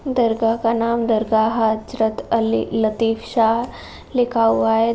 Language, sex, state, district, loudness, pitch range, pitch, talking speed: Hindi, female, Uttar Pradesh, Jalaun, -19 LUFS, 220-230 Hz, 225 Hz, 135 wpm